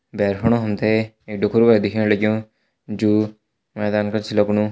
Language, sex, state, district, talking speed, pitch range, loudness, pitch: Hindi, male, Uttarakhand, Tehri Garhwal, 180 wpm, 105-110 Hz, -19 LUFS, 105 Hz